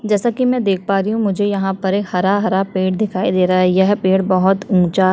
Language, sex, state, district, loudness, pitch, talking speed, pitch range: Hindi, female, Chhattisgarh, Sukma, -16 LUFS, 195 Hz, 255 wpm, 185-205 Hz